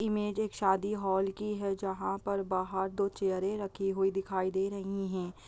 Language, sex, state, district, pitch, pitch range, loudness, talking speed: Hindi, female, Chhattisgarh, Bastar, 195 Hz, 190-200 Hz, -33 LUFS, 185 wpm